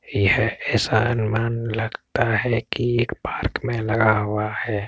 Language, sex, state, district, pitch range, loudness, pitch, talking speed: Hindi, male, Uttar Pradesh, Etah, 110-115 Hz, -22 LUFS, 110 Hz, 135 wpm